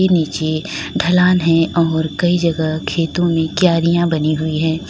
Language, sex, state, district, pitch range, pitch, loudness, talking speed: Hindi, female, Uttar Pradesh, Lalitpur, 160-175 Hz, 165 Hz, -16 LUFS, 145 wpm